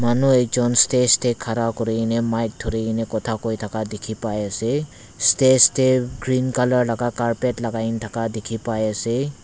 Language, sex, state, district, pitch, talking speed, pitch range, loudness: Nagamese, male, Nagaland, Dimapur, 115 Hz, 165 wpm, 110-125 Hz, -20 LUFS